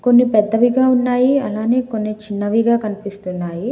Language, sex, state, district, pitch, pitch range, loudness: Telugu, female, Telangana, Hyderabad, 225 Hz, 210-245 Hz, -17 LUFS